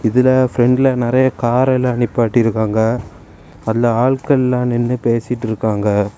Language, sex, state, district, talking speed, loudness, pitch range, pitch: Tamil, male, Tamil Nadu, Kanyakumari, 85 wpm, -15 LUFS, 110-125 Hz, 120 Hz